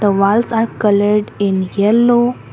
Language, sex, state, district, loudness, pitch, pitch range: English, female, Assam, Kamrup Metropolitan, -14 LUFS, 210 Hz, 200-230 Hz